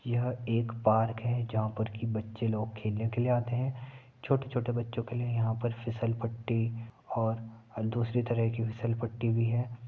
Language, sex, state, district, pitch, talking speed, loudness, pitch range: Hindi, male, Uttar Pradesh, Etah, 115 Hz, 170 wpm, -32 LUFS, 115-120 Hz